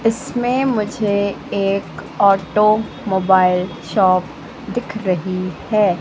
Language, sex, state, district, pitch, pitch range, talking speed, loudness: Hindi, female, Madhya Pradesh, Katni, 200 Hz, 185-215 Hz, 80 wpm, -18 LUFS